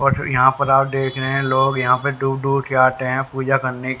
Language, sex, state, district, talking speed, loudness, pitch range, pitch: Hindi, male, Haryana, Rohtak, 270 wpm, -18 LUFS, 130-135 Hz, 135 Hz